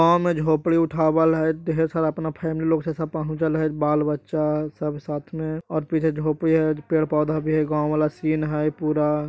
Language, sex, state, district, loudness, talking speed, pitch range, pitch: Magahi, male, Bihar, Jahanabad, -23 LUFS, 185 wpm, 150-160 Hz, 155 Hz